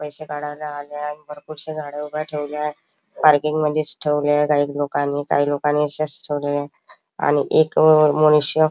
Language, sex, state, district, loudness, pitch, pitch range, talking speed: Marathi, male, Maharashtra, Chandrapur, -20 LUFS, 150 Hz, 145-155 Hz, 150 wpm